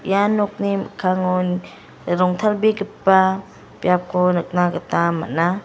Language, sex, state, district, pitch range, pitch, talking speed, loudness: Garo, female, Meghalaya, West Garo Hills, 180-200 Hz, 185 Hz, 85 wpm, -19 LUFS